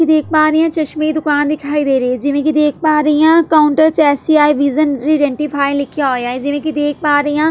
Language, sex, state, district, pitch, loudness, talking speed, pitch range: Punjabi, female, Delhi, New Delhi, 295 Hz, -13 LUFS, 265 wpm, 285-310 Hz